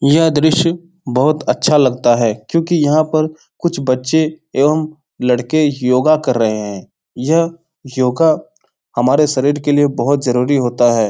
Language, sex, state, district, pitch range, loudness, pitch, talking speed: Hindi, male, Bihar, Jahanabad, 125-155 Hz, -15 LUFS, 145 Hz, 145 wpm